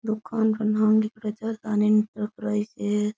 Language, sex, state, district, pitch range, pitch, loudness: Rajasthani, female, Rajasthan, Churu, 210-220 Hz, 215 Hz, -25 LUFS